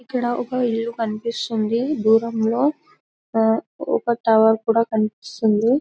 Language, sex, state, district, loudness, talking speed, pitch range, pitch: Telugu, female, Telangana, Karimnagar, -20 LUFS, 60 wpm, 220-245 Hz, 230 Hz